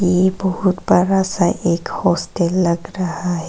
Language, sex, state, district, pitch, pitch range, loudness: Hindi, female, Arunachal Pradesh, Papum Pare, 180 Hz, 170-185 Hz, -18 LUFS